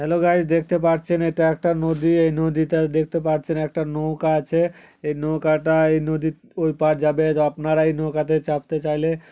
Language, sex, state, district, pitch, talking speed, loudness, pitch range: Bengali, male, West Bengal, Paschim Medinipur, 160 Hz, 180 wpm, -21 LUFS, 155-165 Hz